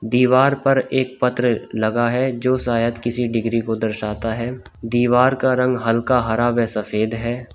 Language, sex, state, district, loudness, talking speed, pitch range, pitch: Hindi, male, Uttar Pradesh, Shamli, -19 LUFS, 165 wpm, 115-125 Hz, 120 Hz